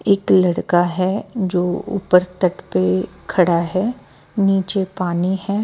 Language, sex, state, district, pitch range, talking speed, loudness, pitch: Hindi, female, Bihar, West Champaran, 180-195 Hz, 130 wpm, -18 LUFS, 185 Hz